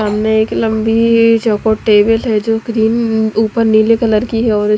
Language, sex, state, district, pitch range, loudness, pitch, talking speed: Hindi, female, Punjab, Fazilka, 215-230 Hz, -12 LUFS, 220 Hz, 190 wpm